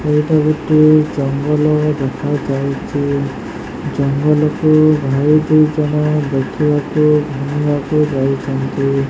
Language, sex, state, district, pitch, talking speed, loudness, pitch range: Odia, male, Odisha, Sambalpur, 150 Hz, 85 wpm, -15 LUFS, 140-150 Hz